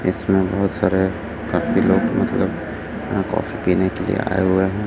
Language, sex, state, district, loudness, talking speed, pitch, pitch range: Hindi, male, Chhattisgarh, Raipur, -20 LUFS, 170 wpm, 95 Hz, 95-100 Hz